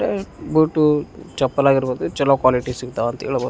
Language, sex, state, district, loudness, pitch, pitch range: Kannada, male, Karnataka, Raichur, -19 LUFS, 135 Hz, 125-150 Hz